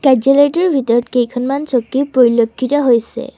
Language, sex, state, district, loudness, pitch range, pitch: Assamese, female, Assam, Sonitpur, -14 LUFS, 240-280 Hz, 260 Hz